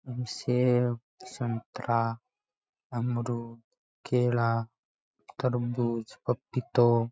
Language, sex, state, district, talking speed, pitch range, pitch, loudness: Rajasthani, male, Rajasthan, Nagaur, 60 wpm, 115-125 Hz, 120 Hz, -30 LUFS